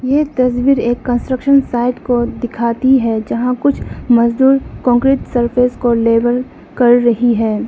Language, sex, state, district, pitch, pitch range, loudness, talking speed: Hindi, female, Arunachal Pradesh, Lower Dibang Valley, 245 Hz, 235-260 Hz, -14 LUFS, 140 wpm